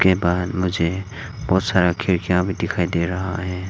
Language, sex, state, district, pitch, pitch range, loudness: Hindi, male, Arunachal Pradesh, Longding, 90 Hz, 90-95 Hz, -21 LUFS